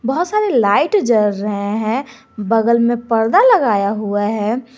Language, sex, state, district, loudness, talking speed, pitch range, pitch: Hindi, female, Jharkhand, Garhwa, -15 LUFS, 150 wpm, 210-260 Hz, 225 Hz